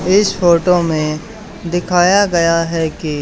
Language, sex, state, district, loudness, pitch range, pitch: Hindi, male, Haryana, Charkhi Dadri, -14 LUFS, 165-185 Hz, 175 Hz